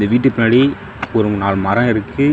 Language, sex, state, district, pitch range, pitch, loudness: Tamil, male, Tamil Nadu, Namakkal, 105-130 Hz, 115 Hz, -15 LUFS